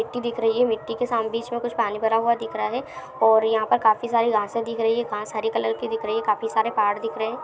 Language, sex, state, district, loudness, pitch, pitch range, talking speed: Hindi, female, Bihar, Lakhisarai, -23 LUFS, 225 Hz, 220-235 Hz, 300 wpm